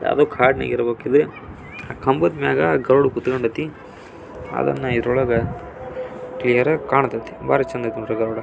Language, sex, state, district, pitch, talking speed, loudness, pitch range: Kannada, male, Karnataka, Belgaum, 120 Hz, 140 wpm, -20 LUFS, 115-130 Hz